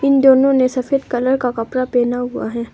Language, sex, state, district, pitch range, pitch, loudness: Hindi, female, Arunachal Pradesh, Longding, 245-265 Hz, 255 Hz, -16 LUFS